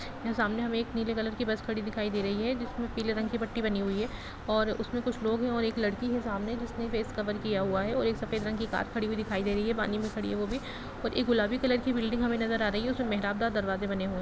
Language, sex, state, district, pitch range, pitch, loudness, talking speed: Hindi, female, Chhattisgarh, Raigarh, 210-235 Hz, 225 Hz, -31 LUFS, 295 wpm